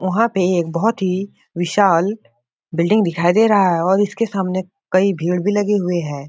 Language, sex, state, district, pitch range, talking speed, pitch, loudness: Hindi, male, Bihar, Jahanabad, 175-205 Hz, 200 wpm, 185 Hz, -17 LUFS